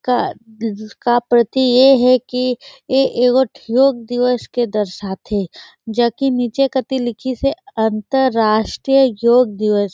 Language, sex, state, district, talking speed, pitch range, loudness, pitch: Surgujia, female, Chhattisgarh, Sarguja, 120 wpm, 220-260 Hz, -16 LUFS, 245 Hz